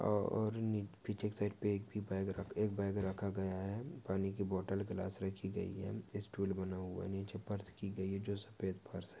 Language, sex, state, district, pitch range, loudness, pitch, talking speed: Hindi, male, Maharashtra, Pune, 95-105 Hz, -41 LUFS, 100 Hz, 220 wpm